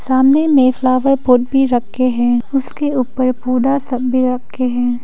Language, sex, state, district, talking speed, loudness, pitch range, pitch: Hindi, female, Arunachal Pradesh, Papum Pare, 165 wpm, -15 LUFS, 250-270 Hz, 255 Hz